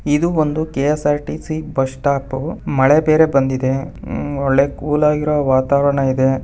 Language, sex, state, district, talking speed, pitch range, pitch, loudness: Kannada, male, Karnataka, Belgaum, 140 wpm, 135-150 Hz, 140 Hz, -17 LUFS